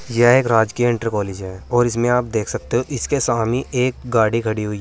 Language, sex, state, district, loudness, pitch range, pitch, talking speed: Hindi, male, Uttar Pradesh, Saharanpur, -19 LUFS, 110-125 Hz, 120 Hz, 235 wpm